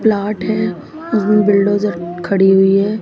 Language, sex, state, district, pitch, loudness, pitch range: Hindi, female, Haryana, Jhajjar, 205 Hz, -15 LUFS, 195-210 Hz